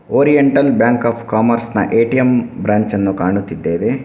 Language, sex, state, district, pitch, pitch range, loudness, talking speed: Kannada, male, Karnataka, Shimoga, 115 Hz, 105-125 Hz, -15 LUFS, 325 wpm